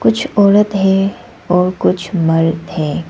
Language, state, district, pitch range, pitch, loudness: Hindi, Arunachal Pradesh, Lower Dibang Valley, 165-200 Hz, 190 Hz, -14 LUFS